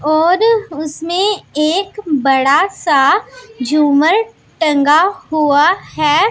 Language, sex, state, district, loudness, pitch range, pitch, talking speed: Hindi, female, Punjab, Pathankot, -13 LUFS, 295-400 Hz, 315 Hz, 85 wpm